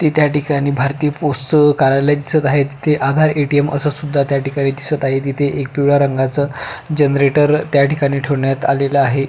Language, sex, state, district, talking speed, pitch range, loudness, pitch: Marathi, male, Maharashtra, Pune, 170 wpm, 140-150 Hz, -15 LUFS, 140 Hz